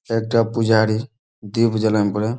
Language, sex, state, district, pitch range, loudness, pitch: Bengali, male, West Bengal, Malda, 110-115 Hz, -19 LUFS, 110 Hz